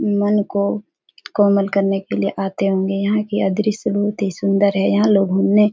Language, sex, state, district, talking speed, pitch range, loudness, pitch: Hindi, female, Bihar, Jahanabad, 210 wpm, 195-210 Hz, -18 LUFS, 200 Hz